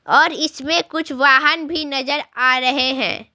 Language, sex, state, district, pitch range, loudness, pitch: Hindi, female, Bihar, Patna, 265-310 Hz, -17 LUFS, 285 Hz